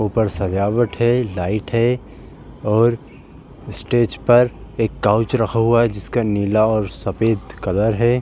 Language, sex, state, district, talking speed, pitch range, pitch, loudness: Hindi, male, Uttar Pradesh, Jalaun, 140 wpm, 100-120 Hz, 110 Hz, -18 LUFS